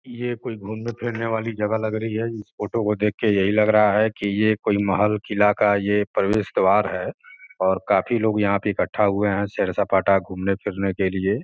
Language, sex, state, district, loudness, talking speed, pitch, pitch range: Hindi, male, Uttar Pradesh, Gorakhpur, -22 LUFS, 210 wpm, 105 Hz, 100-110 Hz